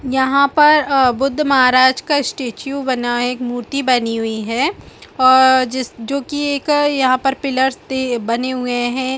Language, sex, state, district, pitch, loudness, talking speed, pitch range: Hindi, female, Chhattisgarh, Balrampur, 260 Hz, -16 LUFS, 170 wpm, 250-275 Hz